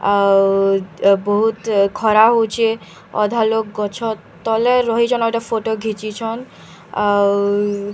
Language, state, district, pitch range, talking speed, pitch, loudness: Sambalpuri, Odisha, Sambalpur, 200-225 Hz, 115 wpm, 215 Hz, -17 LUFS